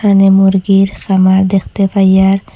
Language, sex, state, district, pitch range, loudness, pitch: Bengali, female, Assam, Hailakandi, 190-195 Hz, -10 LUFS, 195 Hz